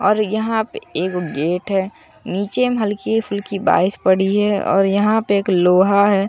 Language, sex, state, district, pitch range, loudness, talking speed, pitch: Hindi, male, Bihar, Katihar, 190-210 Hz, -18 LUFS, 180 wpm, 200 Hz